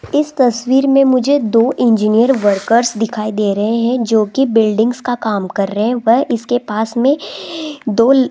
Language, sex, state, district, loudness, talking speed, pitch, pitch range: Hindi, female, Rajasthan, Jaipur, -14 LUFS, 175 wpm, 235 Hz, 220-260 Hz